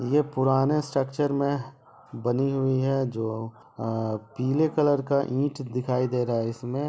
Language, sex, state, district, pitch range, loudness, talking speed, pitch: Hindi, male, Bihar, Begusarai, 120-140 Hz, -26 LUFS, 155 wpm, 130 Hz